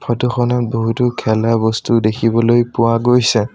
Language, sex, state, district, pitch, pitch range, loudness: Assamese, male, Assam, Sonitpur, 115 Hz, 115-120 Hz, -15 LUFS